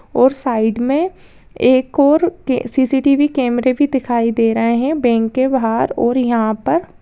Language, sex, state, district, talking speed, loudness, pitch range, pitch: Hindi, female, Rajasthan, Nagaur, 160 wpm, -15 LUFS, 235-280 Hz, 255 Hz